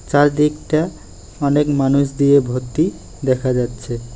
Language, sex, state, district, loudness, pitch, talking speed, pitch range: Bengali, male, West Bengal, Alipurduar, -18 LUFS, 140 Hz, 100 wpm, 125-145 Hz